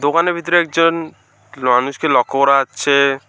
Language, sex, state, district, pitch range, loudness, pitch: Bengali, male, West Bengal, Alipurduar, 135-165 Hz, -15 LUFS, 140 Hz